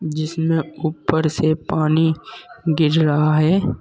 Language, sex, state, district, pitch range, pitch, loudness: Hindi, male, Uttar Pradesh, Saharanpur, 155-160 Hz, 160 Hz, -19 LUFS